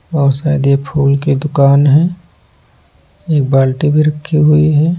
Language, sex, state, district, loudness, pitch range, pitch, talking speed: Hindi, male, Punjab, Pathankot, -12 LUFS, 140-150 Hz, 145 Hz, 155 wpm